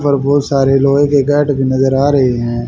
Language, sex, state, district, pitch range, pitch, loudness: Hindi, male, Haryana, Charkhi Dadri, 135-145 Hz, 140 Hz, -12 LUFS